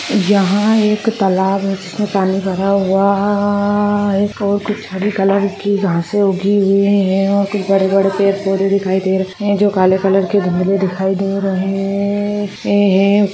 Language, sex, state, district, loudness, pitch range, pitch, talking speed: Hindi, female, Rajasthan, Churu, -15 LUFS, 195-205 Hz, 195 Hz, 160 wpm